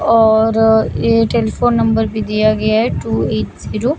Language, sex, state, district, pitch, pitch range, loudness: Hindi, female, Maharashtra, Mumbai Suburban, 225 Hz, 220-230 Hz, -14 LUFS